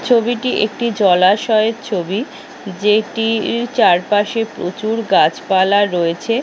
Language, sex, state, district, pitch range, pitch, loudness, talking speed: Bengali, female, West Bengal, Kolkata, 190-230 Hz, 215 Hz, -16 LUFS, 85 wpm